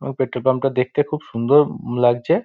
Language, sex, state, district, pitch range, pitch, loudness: Bengali, male, West Bengal, Dakshin Dinajpur, 125-145 Hz, 130 Hz, -19 LUFS